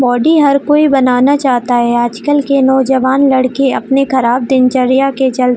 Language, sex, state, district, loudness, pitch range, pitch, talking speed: Hindi, female, Jharkhand, Jamtara, -11 LUFS, 250-275 Hz, 265 Hz, 170 wpm